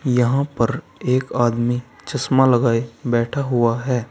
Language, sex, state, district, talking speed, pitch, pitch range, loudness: Hindi, male, Uttar Pradesh, Saharanpur, 130 wpm, 125 Hz, 120-130 Hz, -20 LUFS